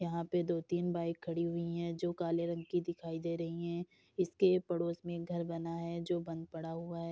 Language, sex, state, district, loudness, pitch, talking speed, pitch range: Hindi, female, Uttar Pradesh, Etah, -37 LUFS, 170 Hz, 230 wpm, 170-175 Hz